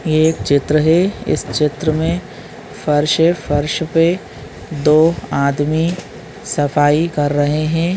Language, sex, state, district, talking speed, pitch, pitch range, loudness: Hindi, male, Chhattisgarh, Balrampur, 130 wpm, 155 Hz, 145-165 Hz, -16 LUFS